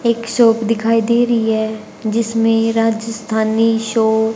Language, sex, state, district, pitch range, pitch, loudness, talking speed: Hindi, female, Haryana, Charkhi Dadri, 220-230 Hz, 225 Hz, -16 LUFS, 125 wpm